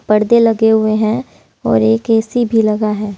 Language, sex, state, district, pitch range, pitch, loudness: Hindi, female, Haryana, Jhajjar, 210-225 Hz, 220 Hz, -13 LUFS